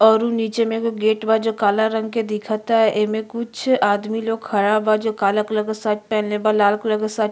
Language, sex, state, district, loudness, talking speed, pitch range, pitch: Bhojpuri, female, Uttar Pradesh, Ghazipur, -20 LUFS, 220 wpm, 210-225 Hz, 215 Hz